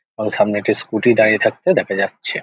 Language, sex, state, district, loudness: Bengali, male, West Bengal, Jhargram, -17 LUFS